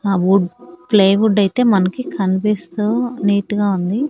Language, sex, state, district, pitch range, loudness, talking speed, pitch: Telugu, female, Andhra Pradesh, Annamaya, 195-230 Hz, -16 LUFS, 130 wpm, 205 Hz